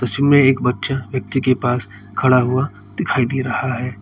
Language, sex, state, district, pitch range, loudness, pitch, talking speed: Hindi, male, Uttar Pradesh, Lalitpur, 120-130 Hz, -17 LUFS, 125 Hz, 180 wpm